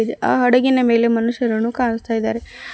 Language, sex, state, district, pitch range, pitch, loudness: Kannada, female, Karnataka, Bidar, 225-245 Hz, 230 Hz, -17 LUFS